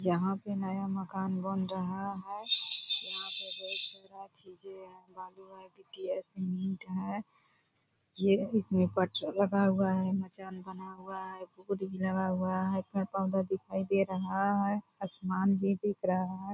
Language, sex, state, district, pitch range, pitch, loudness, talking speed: Hindi, female, Bihar, Purnia, 185-195 Hz, 190 Hz, -33 LUFS, 160 wpm